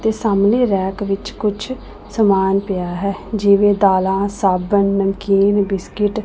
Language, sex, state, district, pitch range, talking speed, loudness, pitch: Punjabi, female, Punjab, Pathankot, 195-210 Hz, 135 wpm, -17 LUFS, 200 Hz